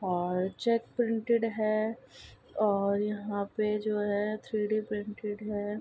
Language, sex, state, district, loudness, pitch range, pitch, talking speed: Hindi, female, Bihar, Saharsa, -31 LUFS, 205-215 Hz, 210 Hz, 135 wpm